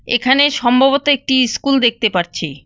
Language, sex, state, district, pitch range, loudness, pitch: Bengali, female, West Bengal, Cooch Behar, 220-275 Hz, -14 LUFS, 255 Hz